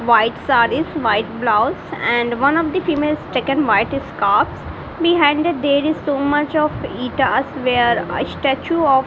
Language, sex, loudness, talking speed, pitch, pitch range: English, female, -17 LUFS, 165 wpm, 280 Hz, 245-305 Hz